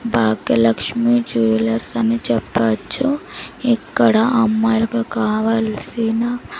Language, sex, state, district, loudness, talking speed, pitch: Telugu, female, Andhra Pradesh, Sri Satya Sai, -18 LUFS, 75 wpm, 225 Hz